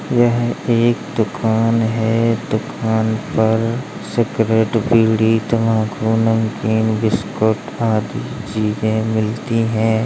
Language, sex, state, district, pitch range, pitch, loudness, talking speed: Hindi, male, Uttar Pradesh, Hamirpur, 110-115 Hz, 110 Hz, -17 LUFS, 90 wpm